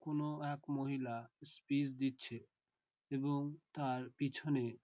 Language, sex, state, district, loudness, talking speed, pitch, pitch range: Bengali, male, West Bengal, Dakshin Dinajpur, -41 LUFS, 100 wpm, 140 Hz, 125-145 Hz